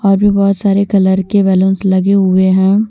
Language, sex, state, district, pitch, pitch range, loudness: Hindi, female, Jharkhand, Deoghar, 195 Hz, 190-200 Hz, -11 LUFS